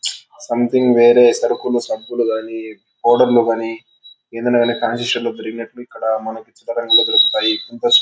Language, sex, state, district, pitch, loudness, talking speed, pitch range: Telugu, male, Andhra Pradesh, Anantapur, 120 Hz, -16 LUFS, 125 wpm, 115-125 Hz